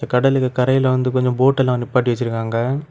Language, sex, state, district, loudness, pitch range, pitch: Tamil, male, Tamil Nadu, Kanyakumari, -18 LUFS, 125-130 Hz, 130 Hz